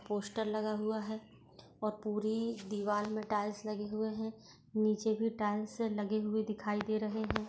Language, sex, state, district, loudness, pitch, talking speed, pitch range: Hindi, female, Uttar Pradesh, Budaun, -36 LUFS, 215 Hz, 170 wpm, 210-220 Hz